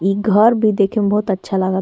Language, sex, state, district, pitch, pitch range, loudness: Bhojpuri, female, Uttar Pradesh, Ghazipur, 205 Hz, 195-215 Hz, -16 LUFS